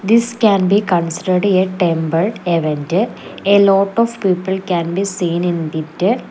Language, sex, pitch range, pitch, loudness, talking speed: English, female, 170-200 Hz, 185 Hz, -16 LUFS, 150 wpm